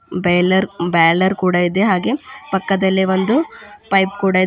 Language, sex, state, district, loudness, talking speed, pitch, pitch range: Kannada, female, Karnataka, Bidar, -16 LUFS, 135 wpm, 190 Hz, 180-200 Hz